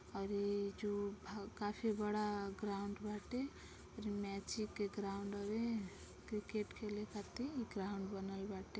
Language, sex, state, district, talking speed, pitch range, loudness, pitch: Bhojpuri, female, Uttar Pradesh, Deoria, 125 wpm, 200-210 Hz, -44 LUFS, 205 Hz